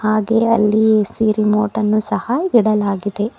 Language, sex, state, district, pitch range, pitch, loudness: Kannada, female, Karnataka, Bidar, 210-225 Hz, 215 Hz, -16 LUFS